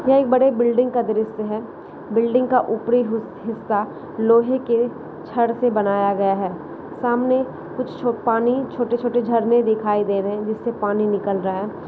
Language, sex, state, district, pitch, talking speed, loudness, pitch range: Hindi, female, West Bengal, Kolkata, 230 Hz, 165 wpm, -20 LUFS, 210-240 Hz